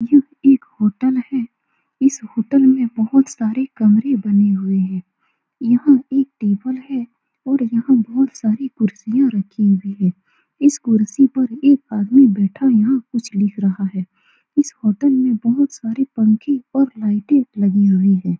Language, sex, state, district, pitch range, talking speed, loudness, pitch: Hindi, female, Bihar, Saran, 210-270 Hz, 155 wpm, -17 LUFS, 235 Hz